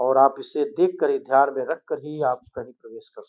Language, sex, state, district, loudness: Hindi, male, Uttar Pradesh, Gorakhpur, -23 LUFS